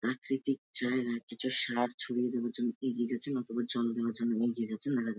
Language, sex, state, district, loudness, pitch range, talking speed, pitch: Bengali, male, West Bengal, Jalpaiguri, -33 LUFS, 115-125 Hz, 185 wpm, 120 Hz